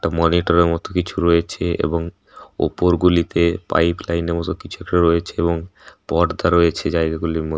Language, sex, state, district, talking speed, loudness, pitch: Bengali, male, Jharkhand, Sahebganj, 175 wpm, -19 LUFS, 85 Hz